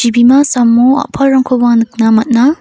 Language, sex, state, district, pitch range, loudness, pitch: Garo, female, Meghalaya, North Garo Hills, 235-270 Hz, -9 LUFS, 245 Hz